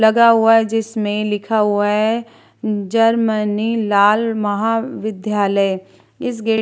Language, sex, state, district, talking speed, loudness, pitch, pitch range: Hindi, female, Bihar, Vaishali, 120 wpm, -17 LUFS, 215 Hz, 205-225 Hz